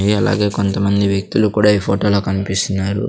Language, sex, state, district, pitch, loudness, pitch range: Telugu, male, Andhra Pradesh, Sri Satya Sai, 100 Hz, -16 LUFS, 95-105 Hz